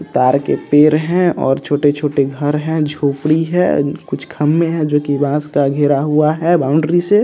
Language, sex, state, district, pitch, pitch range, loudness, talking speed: Hindi, male, Bihar, Purnia, 150 Hz, 145-160 Hz, -15 LUFS, 180 wpm